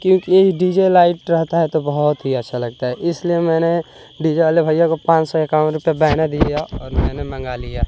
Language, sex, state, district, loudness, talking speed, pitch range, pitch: Hindi, male, Bihar, West Champaran, -17 LUFS, 215 wpm, 150-170 Hz, 160 Hz